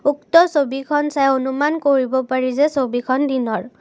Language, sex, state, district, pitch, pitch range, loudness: Assamese, female, Assam, Kamrup Metropolitan, 270 Hz, 255-290 Hz, -18 LUFS